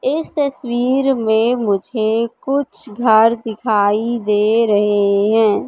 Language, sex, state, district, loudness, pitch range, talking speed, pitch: Hindi, female, Madhya Pradesh, Katni, -16 LUFS, 210-245 Hz, 105 wpm, 225 Hz